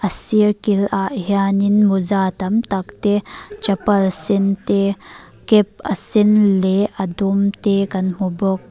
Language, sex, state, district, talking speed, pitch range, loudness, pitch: Mizo, female, Mizoram, Aizawl, 150 wpm, 195-205 Hz, -17 LUFS, 200 Hz